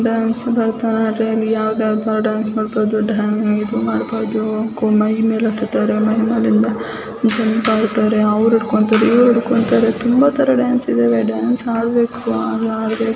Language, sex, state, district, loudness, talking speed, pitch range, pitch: Kannada, female, Karnataka, Chamarajanagar, -16 LUFS, 85 wpm, 215-230 Hz, 220 Hz